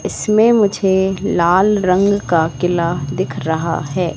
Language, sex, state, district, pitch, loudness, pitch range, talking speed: Hindi, female, Madhya Pradesh, Katni, 185 Hz, -15 LUFS, 170-200 Hz, 130 wpm